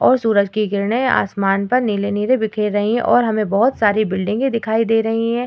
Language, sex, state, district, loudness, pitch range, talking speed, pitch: Hindi, female, Bihar, Vaishali, -17 LUFS, 205-235 Hz, 220 wpm, 220 Hz